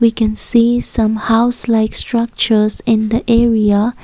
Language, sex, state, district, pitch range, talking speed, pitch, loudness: English, female, Assam, Kamrup Metropolitan, 220-235 Hz, 135 wpm, 230 Hz, -14 LUFS